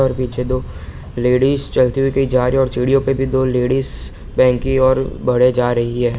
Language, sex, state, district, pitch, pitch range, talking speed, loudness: Hindi, male, Bihar, Sitamarhi, 130 Hz, 125-135 Hz, 235 wpm, -16 LUFS